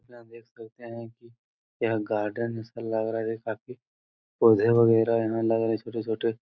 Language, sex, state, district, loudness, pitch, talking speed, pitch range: Hindi, male, Bihar, Araria, -26 LUFS, 115 Hz, 185 wpm, 110-115 Hz